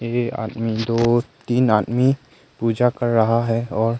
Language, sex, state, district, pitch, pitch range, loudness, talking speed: Hindi, male, Arunachal Pradesh, Longding, 115 Hz, 115-120 Hz, -20 LUFS, 150 wpm